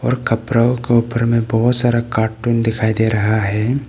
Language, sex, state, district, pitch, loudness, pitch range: Hindi, male, Arunachal Pradesh, Papum Pare, 115 Hz, -16 LUFS, 110-120 Hz